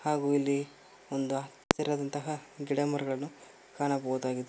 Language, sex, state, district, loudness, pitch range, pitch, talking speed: Kannada, male, Karnataka, Koppal, -32 LUFS, 135-145 Hz, 140 Hz, 95 wpm